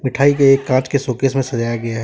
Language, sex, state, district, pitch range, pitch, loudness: Hindi, male, Jharkhand, Deoghar, 115-135 Hz, 130 Hz, -16 LUFS